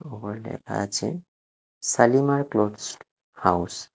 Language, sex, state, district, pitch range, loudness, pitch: Bengali, male, Odisha, Khordha, 95-135 Hz, -24 LUFS, 105 Hz